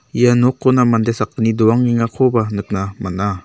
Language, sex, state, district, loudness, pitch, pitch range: Garo, male, Meghalaya, South Garo Hills, -16 LUFS, 115 Hz, 105-125 Hz